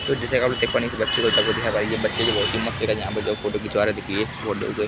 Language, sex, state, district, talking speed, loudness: Hindi, male, Bihar, Araria, 345 wpm, -22 LUFS